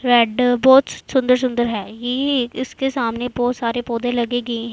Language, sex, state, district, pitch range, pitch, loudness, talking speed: Hindi, female, Punjab, Pathankot, 235-255 Hz, 245 Hz, -19 LUFS, 150 wpm